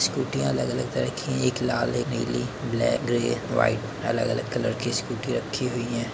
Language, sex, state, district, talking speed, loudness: Hindi, male, Uttar Pradesh, Varanasi, 205 wpm, -26 LUFS